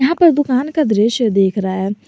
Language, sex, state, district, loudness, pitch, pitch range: Hindi, male, Jharkhand, Garhwa, -15 LUFS, 235 Hz, 200-290 Hz